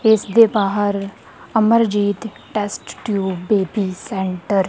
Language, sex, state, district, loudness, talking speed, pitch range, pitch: Punjabi, male, Punjab, Kapurthala, -19 LUFS, 115 wpm, 195-220 Hz, 205 Hz